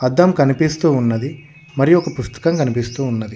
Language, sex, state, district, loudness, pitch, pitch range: Telugu, male, Telangana, Hyderabad, -17 LUFS, 140 Hz, 125-160 Hz